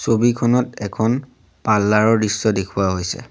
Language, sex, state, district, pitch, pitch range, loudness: Assamese, male, Assam, Sonitpur, 110 Hz, 100-120 Hz, -19 LUFS